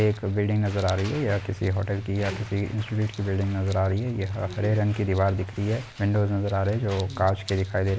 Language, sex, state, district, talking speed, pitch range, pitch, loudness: Hindi, male, Maharashtra, Pune, 275 wpm, 95-105 Hz, 100 Hz, -26 LUFS